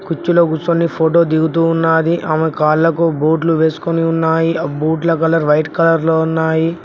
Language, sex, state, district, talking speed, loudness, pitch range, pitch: Telugu, male, Telangana, Mahabubabad, 150 wpm, -14 LUFS, 160-165 Hz, 165 Hz